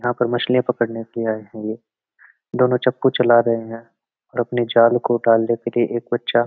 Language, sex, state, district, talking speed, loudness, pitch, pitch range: Marwari, male, Rajasthan, Nagaur, 220 wpm, -19 LUFS, 120 Hz, 115-120 Hz